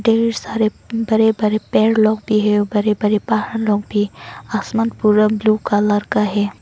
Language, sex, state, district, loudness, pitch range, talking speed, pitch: Hindi, female, Arunachal Pradesh, Longding, -17 LUFS, 210-220 Hz, 180 wpm, 215 Hz